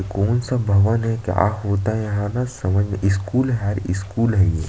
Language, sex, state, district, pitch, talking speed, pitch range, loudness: Chhattisgarhi, male, Chhattisgarh, Sarguja, 100 Hz, 205 wpm, 95-115 Hz, -20 LUFS